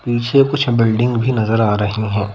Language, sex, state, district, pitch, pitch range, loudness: Hindi, female, Madhya Pradesh, Bhopal, 115 Hz, 110-125 Hz, -16 LUFS